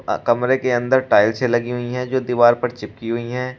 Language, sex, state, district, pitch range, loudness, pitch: Hindi, male, Uttar Pradesh, Shamli, 120-125 Hz, -18 LUFS, 125 Hz